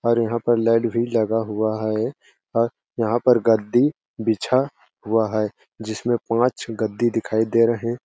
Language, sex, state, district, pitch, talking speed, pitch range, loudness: Hindi, male, Chhattisgarh, Balrampur, 115 Hz, 165 wpm, 110-120 Hz, -21 LUFS